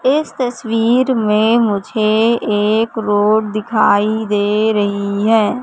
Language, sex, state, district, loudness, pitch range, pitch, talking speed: Hindi, female, Madhya Pradesh, Katni, -15 LUFS, 210-230 Hz, 220 Hz, 105 wpm